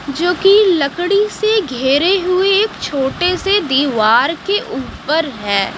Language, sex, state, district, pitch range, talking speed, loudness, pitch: Hindi, female, Haryana, Jhajjar, 280-395 Hz, 135 wpm, -14 LUFS, 355 Hz